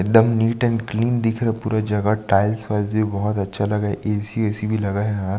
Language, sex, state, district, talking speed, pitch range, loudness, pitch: Hindi, male, Chhattisgarh, Sukma, 235 wpm, 105-110 Hz, -21 LUFS, 105 Hz